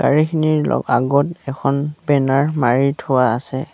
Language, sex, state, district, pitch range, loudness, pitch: Assamese, male, Assam, Sonitpur, 130-150 Hz, -17 LUFS, 140 Hz